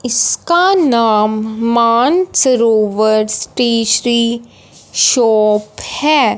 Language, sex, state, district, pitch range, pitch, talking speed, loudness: Hindi, female, Punjab, Fazilka, 215-255 Hz, 235 Hz, 55 wpm, -13 LUFS